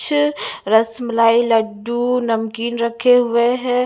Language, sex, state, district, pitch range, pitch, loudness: Hindi, female, Bihar, West Champaran, 230-245 Hz, 235 Hz, -17 LUFS